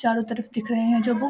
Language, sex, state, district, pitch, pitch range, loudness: Hindi, female, Bihar, Samastipur, 230 Hz, 230-240 Hz, -24 LUFS